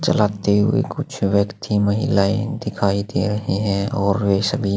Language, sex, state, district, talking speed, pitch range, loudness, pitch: Hindi, male, Maharashtra, Aurangabad, 150 wpm, 100-105 Hz, -20 LUFS, 100 Hz